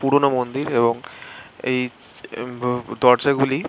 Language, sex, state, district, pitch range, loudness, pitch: Bengali, male, West Bengal, Malda, 125-135 Hz, -21 LUFS, 125 Hz